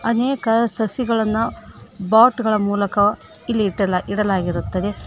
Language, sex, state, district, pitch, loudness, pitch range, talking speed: Kannada, female, Karnataka, Koppal, 215 Hz, -19 LUFS, 195-230 Hz, 85 wpm